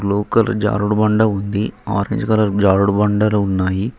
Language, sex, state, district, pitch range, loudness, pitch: Telugu, male, Telangana, Mahabubabad, 100-105 Hz, -17 LUFS, 105 Hz